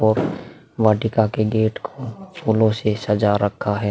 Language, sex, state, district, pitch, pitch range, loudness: Hindi, male, Bihar, Vaishali, 110 Hz, 105-110 Hz, -20 LUFS